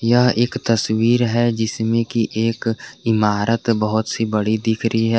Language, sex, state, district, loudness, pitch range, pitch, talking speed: Hindi, male, Jharkhand, Garhwa, -19 LUFS, 110-115 Hz, 115 Hz, 160 wpm